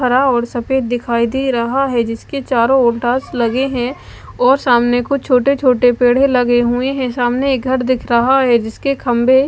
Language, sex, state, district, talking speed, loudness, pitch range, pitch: Hindi, female, Maharashtra, Mumbai Suburban, 170 wpm, -15 LUFS, 240-265 Hz, 250 Hz